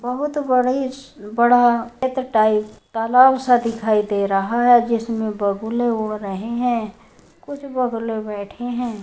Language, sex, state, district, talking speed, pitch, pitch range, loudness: Hindi, female, Uttar Pradesh, Jyotiba Phule Nagar, 120 wpm, 235 Hz, 215-250 Hz, -19 LUFS